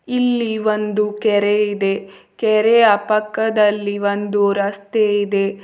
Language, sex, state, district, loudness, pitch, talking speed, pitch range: Kannada, female, Karnataka, Bidar, -17 LUFS, 210 Hz, 95 wpm, 205-215 Hz